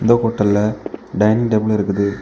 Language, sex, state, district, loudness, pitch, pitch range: Tamil, male, Tamil Nadu, Kanyakumari, -17 LUFS, 105 Hz, 100-110 Hz